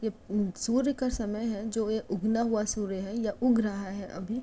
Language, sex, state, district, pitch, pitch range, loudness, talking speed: Hindi, female, Uttar Pradesh, Jyotiba Phule Nagar, 215 Hz, 205-230 Hz, -30 LUFS, 230 wpm